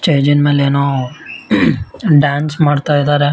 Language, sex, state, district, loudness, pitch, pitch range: Kannada, male, Karnataka, Bellary, -13 LUFS, 145 Hz, 140-150 Hz